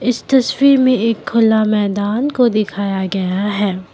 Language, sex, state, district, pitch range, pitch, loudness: Hindi, female, Assam, Kamrup Metropolitan, 200-250 Hz, 215 Hz, -15 LUFS